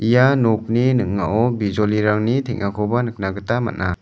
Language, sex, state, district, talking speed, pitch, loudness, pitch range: Garo, male, Meghalaya, West Garo Hills, 120 wpm, 110 Hz, -19 LUFS, 100-120 Hz